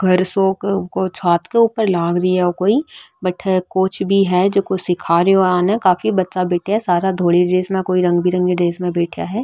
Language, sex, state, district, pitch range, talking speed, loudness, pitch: Marwari, female, Rajasthan, Nagaur, 180-195 Hz, 275 wpm, -17 LUFS, 185 Hz